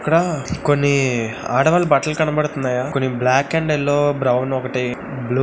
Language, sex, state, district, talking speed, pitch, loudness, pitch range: Telugu, male, Andhra Pradesh, Visakhapatnam, 120 wpm, 140 Hz, -18 LUFS, 130-150 Hz